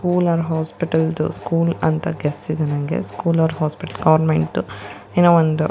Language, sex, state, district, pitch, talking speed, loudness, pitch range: Kannada, female, Karnataka, Mysore, 160 Hz, 145 wpm, -19 LUFS, 155-170 Hz